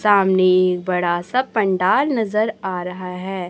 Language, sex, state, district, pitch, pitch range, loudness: Hindi, male, Chhattisgarh, Raipur, 185 Hz, 180-215 Hz, -19 LUFS